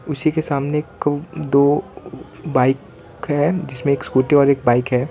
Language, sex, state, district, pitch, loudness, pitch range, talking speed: Hindi, male, Gujarat, Valsad, 145 Hz, -18 LUFS, 130-150 Hz, 150 wpm